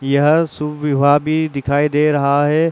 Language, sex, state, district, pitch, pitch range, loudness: Hindi, male, Uttar Pradesh, Muzaffarnagar, 150 Hz, 140-155 Hz, -16 LUFS